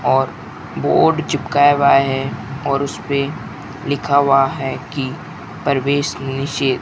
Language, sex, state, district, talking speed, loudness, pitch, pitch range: Hindi, male, Rajasthan, Bikaner, 125 wpm, -17 LUFS, 140 Hz, 135-145 Hz